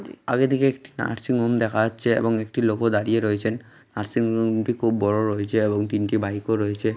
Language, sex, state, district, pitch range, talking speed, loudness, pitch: Bengali, male, West Bengal, Malda, 105-115 Hz, 170 wpm, -23 LUFS, 110 Hz